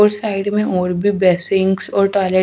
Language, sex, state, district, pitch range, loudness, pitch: Hindi, female, Haryana, Charkhi Dadri, 185-205 Hz, -16 LUFS, 195 Hz